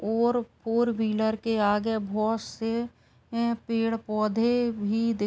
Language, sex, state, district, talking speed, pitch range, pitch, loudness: Hindi, female, Uttar Pradesh, Gorakhpur, 135 wpm, 215-235 Hz, 225 Hz, -27 LUFS